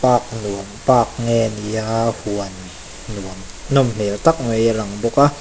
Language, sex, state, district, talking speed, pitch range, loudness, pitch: Mizo, male, Mizoram, Aizawl, 175 wpm, 100-120 Hz, -19 LUFS, 110 Hz